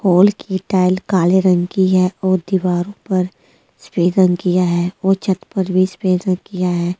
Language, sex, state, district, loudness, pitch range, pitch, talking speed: Hindi, female, Delhi, New Delhi, -16 LUFS, 180-190 Hz, 185 Hz, 215 wpm